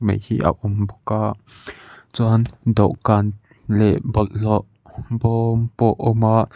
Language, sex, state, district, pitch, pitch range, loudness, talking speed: Mizo, male, Mizoram, Aizawl, 110 Hz, 105-115 Hz, -19 LUFS, 135 wpm